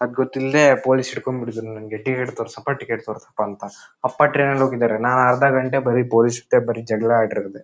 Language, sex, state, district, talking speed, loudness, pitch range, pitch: Kannada, male, Karnataka, Shimoga, 165 wpm, -19 LUFS, 115-130 Hz, 125 Hz